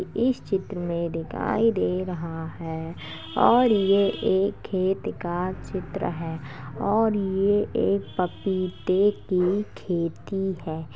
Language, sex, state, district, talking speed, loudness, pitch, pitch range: Hindi, female, Uttar Pradesh, Jalaun, 120 wpm, -25 LUFS, 185 Hz, 165-200 Hz